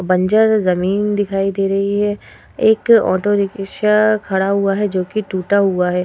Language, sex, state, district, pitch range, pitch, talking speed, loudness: Hindi, female, Uttar Pradesh, Hamirpur, 190-210 Hz, 200 Hz, 160 wpm, -16 LUFS